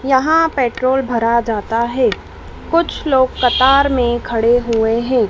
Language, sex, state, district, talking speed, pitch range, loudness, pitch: Hindi, female, Madhya Pradesh, Dhar, 135 wpm, 235-265 Hz, -15 LUFS, 250 Hz